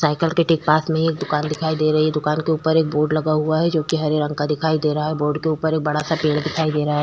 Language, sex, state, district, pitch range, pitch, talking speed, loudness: Hindi, female, Bihar, Vaishali, 150-160 Hz, 155 Hz, 305 wpm, -20 LUFS